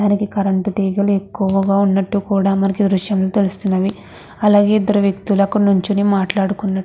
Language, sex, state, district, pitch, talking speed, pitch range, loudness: Telugu, female, Andhra Pradesh, Krishna, 200 Hz, 150 wpm, 195-205 Hz, -16 LUFS